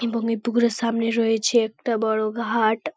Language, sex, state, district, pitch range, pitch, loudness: Bengali, female, West Bengal, Paschim Medinipur, 220-235 Hz, 230 Hz, -22 LUFS